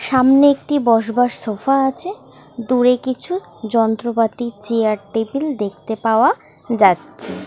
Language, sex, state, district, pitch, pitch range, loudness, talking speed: Bengali, female, West Bengal, Kolkata, 235 Hz, 220-265 Hz, -17 LUFS, 105 wpm